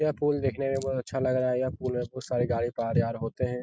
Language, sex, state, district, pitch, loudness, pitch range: Hindi, male, Bihar, Jahanabad, 130 Hz, -29 LUFS, 120-135 Hz